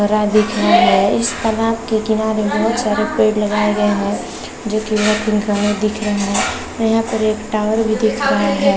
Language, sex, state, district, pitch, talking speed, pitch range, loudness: Hindi, female, Chhattisgarh, Balrampur, 215 Hz, 205 wpm, 210-220 Hz, -16 LUFS